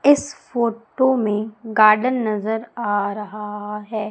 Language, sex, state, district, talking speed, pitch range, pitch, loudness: Hindi, female, Madhya Pradesh, Umaria, 115 wpm, 210-235 Hz, 215 Hz, -20 LUFS